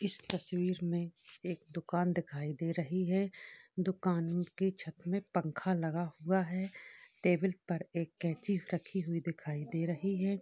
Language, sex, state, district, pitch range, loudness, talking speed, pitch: Hindi, female, Uttar Pradesh, Etah, 170-190 Hz, -36 LUFS, 165 wpm, 175 Hz